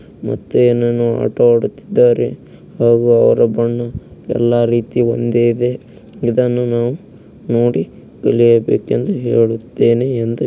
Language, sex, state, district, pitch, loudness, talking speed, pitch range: Kannada, male, Karnataka, Mysore, 120 Hz, -15 LUFS, 90 wpm, 115-120 Hz